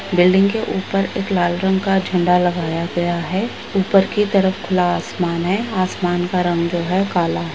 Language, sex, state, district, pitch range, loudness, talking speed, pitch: Hindi, female, Maharashtra, Chandrapur, 175-195 Hz, -18 LUFS, 185 wpm, 185 Hz